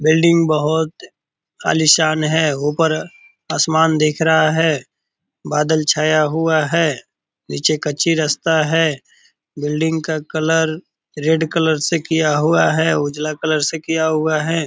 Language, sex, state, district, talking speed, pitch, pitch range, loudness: Hindi, male, Bihar, Purnia, 130 wpm, 155 Hz, 150-160 Hz, -17 LUFS